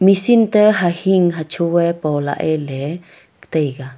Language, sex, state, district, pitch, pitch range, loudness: Wancho, female, Arunachal Pradesh, Longding, 170 Hz, 155-190 Hz, -16 LUFS